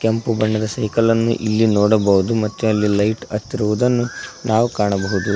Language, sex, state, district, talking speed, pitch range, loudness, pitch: Kannada, male, Karnataka, Koppal, 135 wpm, 105-115 Hz, -18 LUFS, 110 Hz